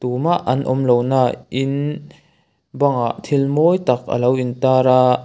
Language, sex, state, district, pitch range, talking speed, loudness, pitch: Mizo, male, Mizoram, Aizawl, 125-140 Hz, 160 wpm, -17 LUFS, 130 Hz